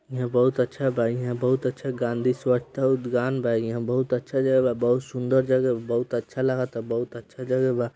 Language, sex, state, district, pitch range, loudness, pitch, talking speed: Bhojpuri, male, Bihar, East Champaran, 120-130 Hz, -25 LUFS, 125 Hz, 190 wpm